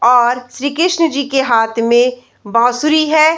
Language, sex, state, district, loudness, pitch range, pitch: Hindi, female, Bihar, Samastipur, -14 LUFS, 240-305 Hz, 250 Hz